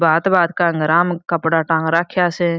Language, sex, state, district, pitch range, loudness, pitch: Marwari, female, Rajasthan, Churu, 165-175 Hz, -17 LUFS, 170 Hz